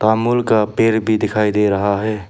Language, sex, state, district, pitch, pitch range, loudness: Hindi, male, Arunachal Pradesh, Papum Pare, 110 Hz, 105-110 Hz, -16 LUFS